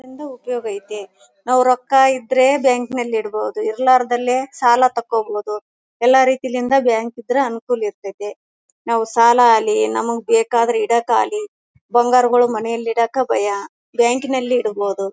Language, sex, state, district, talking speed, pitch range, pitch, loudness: Kannada, female, Karnataka, Bellary, 125 wpm, 225-255 Hz, 240 Hz, -17 LUFS